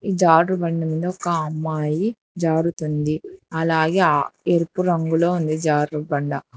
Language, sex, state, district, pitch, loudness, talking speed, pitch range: Telugu, female, Telangana, Hyderabad, 165 Hz, -21 LUFS, 130 wpm, 155-175 Hz